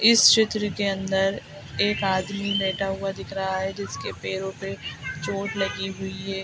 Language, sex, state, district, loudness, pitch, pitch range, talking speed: Hindi, female, Bihar, Araria, -25 LUFS, 195 Hz, 190-200 Hz, 175 wpm